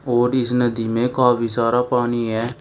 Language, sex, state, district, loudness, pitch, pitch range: Hindi, male, Uttar Pradesh, Shamli, -19 LUFS, 120 Hz, 115-125 Hz